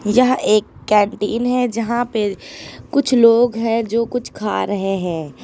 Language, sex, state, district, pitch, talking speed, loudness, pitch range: Hindi, female, Uttar Pradesh, Lucknow, 230 Hz, 155 wpm, -17 LUFS, 210-245 Hz